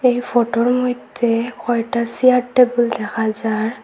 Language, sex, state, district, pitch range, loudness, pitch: Bengali, female, Assam, Hailakandi, 230-245 Hz, -18 LUFS, 240 Hz